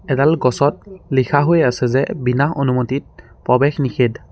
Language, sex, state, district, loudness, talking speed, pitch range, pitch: Assamese, male, Assam, Sonitpur, -17 LUFS, 140 wpm, 125-150 Hz, 135 Hz